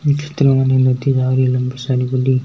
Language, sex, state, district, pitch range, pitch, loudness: Hindi, male, Rajasthan, Nagaur, 130-135 Hz, 130 Hz, -16 LUFS